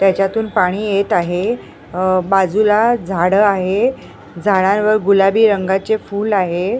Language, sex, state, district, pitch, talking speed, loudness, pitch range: Marathi, female, Maharashtra, Mumbai Suburban, 195 Hz, 115 wpm, -15 LUFS, 185-215 Hz